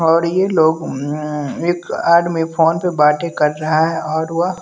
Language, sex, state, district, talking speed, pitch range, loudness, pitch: Hindi, male, Bihar, West Champaran, 180 wpm, 155-170 Hz, -16 LUFS, 165 Hz